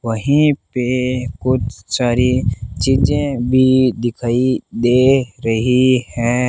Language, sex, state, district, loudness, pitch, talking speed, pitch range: Hindi, male, Rajasthan, Bikaner, -16 LUFS, 125 Hz, 90 wpm, 120-130 Hz